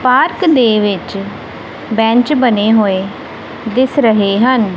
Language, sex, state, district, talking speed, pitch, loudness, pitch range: Punjabi, female, Punjab, Kapurthala, 115 wpm, 225 Hz, -12 LUFS, 205-255 Hz